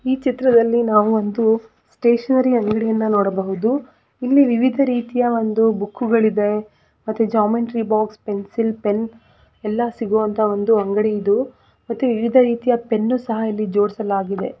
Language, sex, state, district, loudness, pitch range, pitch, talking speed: Kannada, female, Karnataka, Dakshina Kannada, -19 LUFS, 210-240 Hz, 225 Hz, 120 wpm